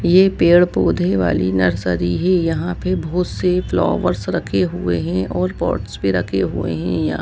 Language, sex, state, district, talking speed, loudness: Hindi, male, Jharkhand, Jamtara, 165 wpm, -18 LUFS